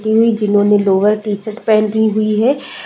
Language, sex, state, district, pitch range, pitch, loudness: Hindi, female, Uttar Pradesh, Deoria, 210-220 Hz, 215 Hz, -14 LUFS